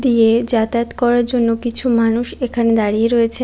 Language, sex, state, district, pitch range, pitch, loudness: Bengali, female, West Bengal, Kolkata, 230-245 Hz, 235 Hz, -15 LUFS